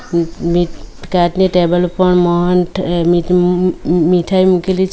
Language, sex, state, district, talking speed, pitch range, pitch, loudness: Gujarati, female, Gujarat, Valsad, 110 wpm, 175-185 Hz, 180 Hz, -14 LUFS